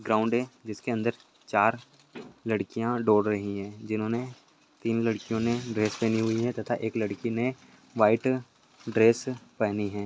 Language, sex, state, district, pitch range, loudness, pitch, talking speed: Hindi, male, Maharashtra, Pune, 110-120 Hz, -28 LUFS, 115 Hz, 135 wpm